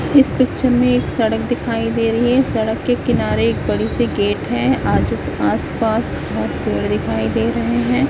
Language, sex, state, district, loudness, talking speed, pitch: Hindi, female, Chhattisgarh, Raipur, -17 LUFS, 190 wpm, 130 Hz